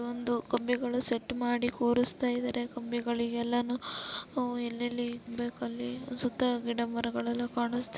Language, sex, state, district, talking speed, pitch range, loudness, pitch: Kannada, female, Karnataka, Dharwad, 130 wpm, 235-245 Hz, -32 LUFS, 240 Hz